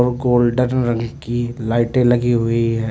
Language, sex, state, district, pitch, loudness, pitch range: Hindi, male, Uttar Pradesh, Shamli, 120 Hz, -18 LUFS, 115-125 Hz